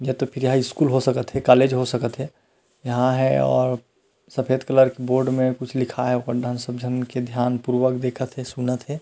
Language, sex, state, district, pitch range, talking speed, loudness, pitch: Chhattisgarhi, male, Chhattisgarh, Rajnandgaon, 125-130 Hz, 215 wpm, -22 LUFS, 125 Hz